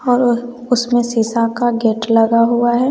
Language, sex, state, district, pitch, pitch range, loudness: Hindi, female, Bihar, West Champaran, 240 Hz, 230-245 Hz, -15 LUFS